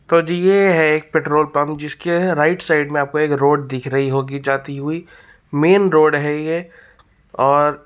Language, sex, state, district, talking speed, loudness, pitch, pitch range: Hindi, male, Uttar Pradesh, Muzaffarnagar, 190 wpm, -17 LUFS, 150 Hz, 145-165 Hz